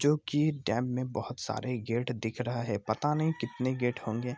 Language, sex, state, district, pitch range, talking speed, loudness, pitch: Hindi, male, Bihar, Gopalganj, 115-135 Hz, 205 wpm, -32 LUFS, 125 Hz